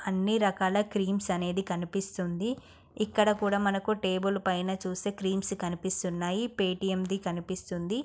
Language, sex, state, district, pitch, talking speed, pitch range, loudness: Telugu, female, Andhra Pradesh, Srikakulam, 195 Hz, 120 wpm, 185-205 Hz, -30 LUFS